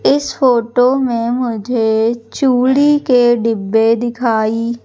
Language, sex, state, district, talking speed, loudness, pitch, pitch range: Hindi, female, Madhya Pradesh, Umaria, 100 wpm, -14 LUFS, 240 Hz, 230-255 Hz